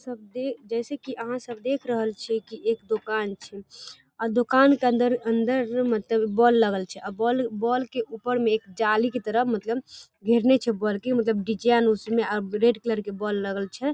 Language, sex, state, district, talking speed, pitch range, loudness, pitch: Maithili, female, Bihar, Darbhanga, 195 wpm, 215-245 Hz, -25 LUFS, 230 Hz